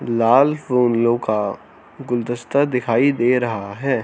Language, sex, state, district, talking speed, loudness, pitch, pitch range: Hindi, male, Haryana, Charkhi Dadri, 120 wpm, -18 LUFS, 120 Hz, 115-135 Hz